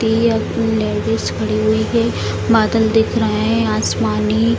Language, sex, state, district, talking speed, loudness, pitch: Hindi, female, Bihar, Jamui, 105 wpm, -16 LUFS, 110 Hz